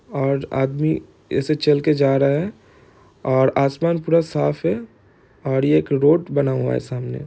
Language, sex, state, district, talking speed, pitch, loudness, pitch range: Hindi, male, Bihar, East Champaran, 175 wpm, 140 Hz, -20 LUFS, 130-150 Hz